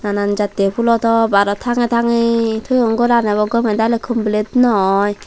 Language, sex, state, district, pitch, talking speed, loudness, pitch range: Chakma, female, Tripura, Dhalai, 225 Hz, 160 wpm, -15 LUFS, 205-235 Hz